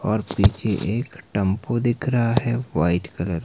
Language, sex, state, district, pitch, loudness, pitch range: Hindi, male, Himachal Pradesh, Shimla, 110 Hz, -22 LUFS, 95-120 Hz